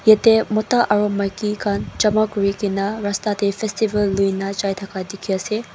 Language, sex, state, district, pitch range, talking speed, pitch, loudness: Nagamese, female, Mizoram, Aizawl, 195-215 Hz, 135 wpm, 205 Hz, -20 LUFS